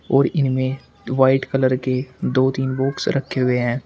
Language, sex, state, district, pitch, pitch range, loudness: Hindi, male, Uttar Pradesh, Shamli, 130 Hz, 130-135 Hz, -20 LUFS